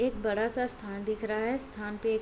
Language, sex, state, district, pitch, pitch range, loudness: Hindi, female, Bihar, Gopalganj, 220 Hz, 210-235 Hz, -33 LUFS